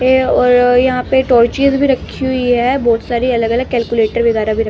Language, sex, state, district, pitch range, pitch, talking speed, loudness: Hindi, female, Bihar, West Champaran, 235-260 Hz, 245 Hz, 205 wpm, -13 LUFS